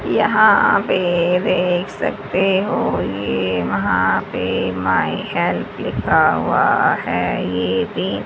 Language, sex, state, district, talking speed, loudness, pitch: Hindi, male, Haryana, Charkhi Dadri, 110 wpm, -18 LUFS, 175 Hz